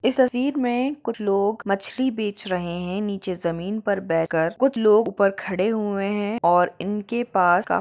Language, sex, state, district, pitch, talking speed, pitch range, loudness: Hindi, female, Jharkhand, Jamtara, 205 Hz, 175 wpm, 185-230 Hz, -23 LUFS